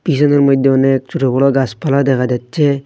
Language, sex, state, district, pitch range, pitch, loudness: Bengali, male, Assam, Hailakandi, 130-140 Hz, 135 Hz, -14 LUFS